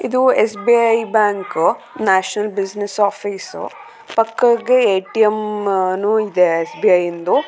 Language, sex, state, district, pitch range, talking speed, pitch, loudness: Kannada, female, Karnataka, Raichur, 195-225 Hz, 145 wpm, 210 Hz, -16 LUFS